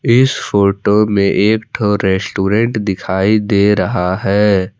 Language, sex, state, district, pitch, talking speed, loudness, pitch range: Hindi, male, Jharkhand, Palamu, 100 Hz, 125 wpm, -14 LUFS, 95-110 Hz